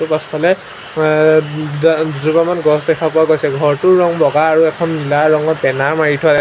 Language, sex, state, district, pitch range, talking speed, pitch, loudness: Assamese, male, Assam, Sonitpur, 150-160 Hz, 180 wpm, 155 Hz, -13 LUFS